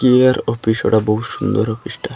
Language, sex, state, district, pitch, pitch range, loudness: Bengali, male, Assam, Hailakandi, 110 Hz, 110-125 Hz, -17 LUFS